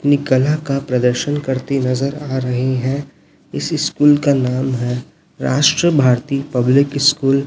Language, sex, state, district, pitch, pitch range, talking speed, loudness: Hindi, male, Chhattisgarh, Raipur, 135 Hz, 130-145 Hz, 155 wpm, -16 LUFS